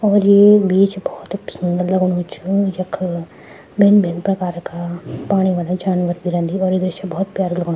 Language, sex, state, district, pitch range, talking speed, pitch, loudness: Garhwali, female, Uttarakhand, Tehri Garhwal, 175-195 Hz, 180 wpm, 185 Hz, -17 LUFS